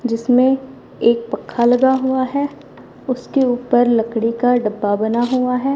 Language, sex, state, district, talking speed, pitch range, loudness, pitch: Hindi, female, Punjab, Fazilka, 145 wpm, 230-260 Hz, -17 LUFS, 245 Hz